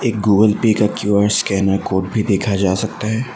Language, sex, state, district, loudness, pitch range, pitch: Hindi, male, Assam, Sonitpur, -16 LUFS, 100-110 Hz, 105 Hz